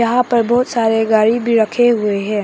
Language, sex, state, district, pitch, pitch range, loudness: Hindi, female, Arunachal Pradesh, Papum Pare, 230 Hz, 220-240 Hz, -14 LUFS